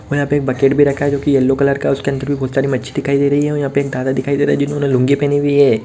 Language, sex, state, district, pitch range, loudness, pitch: Hindi, male, Uttarakhand, Uttarkashi, 135-145 Hz, -15 LUFS, 140 Hz